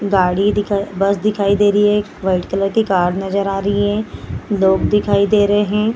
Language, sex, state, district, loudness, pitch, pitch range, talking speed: Hindi, female, Bihar, Gaya, -16 LUFS, 200 Hz, 195-205 Hz, 210 wpm